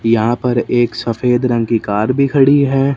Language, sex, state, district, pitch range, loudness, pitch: Hindi, male, Punjab, Fazilka, 115-135 Hz, -14 LUFS, 120 Hz